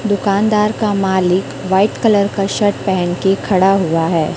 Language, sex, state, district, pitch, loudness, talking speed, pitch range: Hindi, female, Chhattisgarh, Raipur, 195 Hz, -15 LUFS, 165 wpm, 185-205 Hz